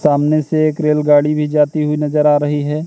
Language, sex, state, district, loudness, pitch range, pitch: Hindi, male, Madhya Pradesh, Katni, -14 LUFS, 150-155 Hz, 150 Hz